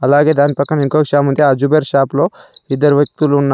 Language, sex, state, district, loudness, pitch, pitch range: Telugu, male, Telangana, Adilabad, -13 LUFS, 145 Hz, 140-150 Hz